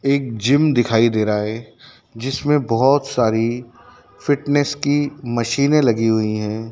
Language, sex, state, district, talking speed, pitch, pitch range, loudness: Hindi, male, Madhya Pradesh, Dhar, 135 wpm, 120 Hz, 115-145 Hz, -18 LUFS